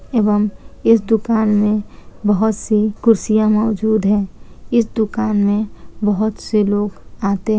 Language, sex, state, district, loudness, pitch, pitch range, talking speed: Hindi, female, Bihar, Kishanganj, -17 LUFS, 215 Hz, 210-220 Hz, 135 wpm